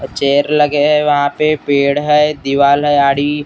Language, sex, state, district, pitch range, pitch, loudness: Hindi, male, Maharashtra, Gondia, 140-150 Hz, 145 Hz, -13 LUFS